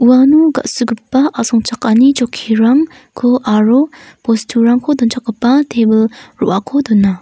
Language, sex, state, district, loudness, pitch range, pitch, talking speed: Garo, female, Meghalaya, North Garo Hills, -12 LUFS, 225-265 Hz, 245 Hz, 85 wpm